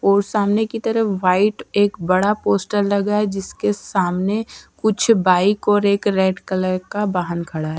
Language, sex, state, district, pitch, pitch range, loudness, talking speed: Hindi, female, Bihar, Patna, 200 Hz, 185-210 Hz, -19 LUFS, 170 wpm